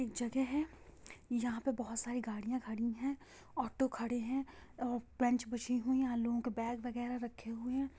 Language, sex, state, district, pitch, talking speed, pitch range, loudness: Hindi, female, Bihar, Sitamarhi, 245 Hz, 175 wpm, 235-260 Hz, -38 LUFS